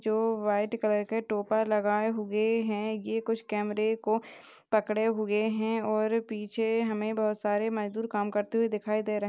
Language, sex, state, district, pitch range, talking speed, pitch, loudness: Hindi, female, Maharashtra, Nagpur, 210-225 Hz, 175 wpm, 215 Hz, -29 LUFS